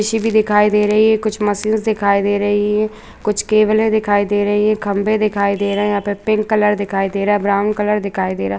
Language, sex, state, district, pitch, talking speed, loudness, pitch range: Hindi, female, Bihar, Lakhisarai, 210 Hz, 250 wpm, -16 LUFS, 200-215 Hz